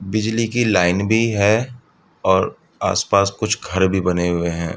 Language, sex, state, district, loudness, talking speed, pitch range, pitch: Hindi, male, Uttar Pradesh, Budaun, -18 LUFS, 165 wpm, 90-110 Hz, 100 Hz